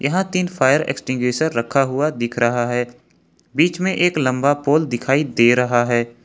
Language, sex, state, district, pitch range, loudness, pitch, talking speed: Hindi, male, Jharkhand, Ranchi, 120-155 Hz, -18 LUFS, 130 Hz, 165 wpm